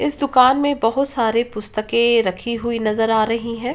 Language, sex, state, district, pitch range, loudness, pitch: Hindi, female, Uttar Pradesh, Ghazipur, 225-255 Hz, -18 LUFS, 235 Hz